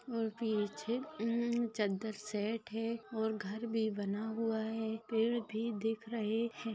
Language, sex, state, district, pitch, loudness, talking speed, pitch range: Hindi, female, Maharashtra, Pune, 225 Hz, -37 LUFS, 140 wpm, 220-230 Hz